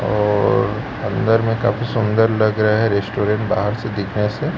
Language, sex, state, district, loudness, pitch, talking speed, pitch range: Hindi, male, Chhattisgarh, Raipur, -18 LUFS, 110 Hz, 170 wpm, 105-115 Hz